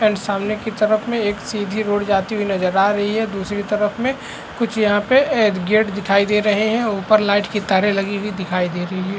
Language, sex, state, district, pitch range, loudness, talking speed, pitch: Hindi, male, Bihar, Araria, 200-215 Hz, -18 LUFS, 230 wpm, 205 Hz